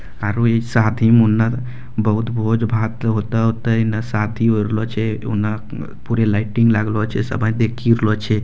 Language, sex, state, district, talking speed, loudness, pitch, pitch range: Maithili, male, Bihar, Bhagalpur, 140 wpm, -18 LUFS, 110 Hz, 110-115 Hz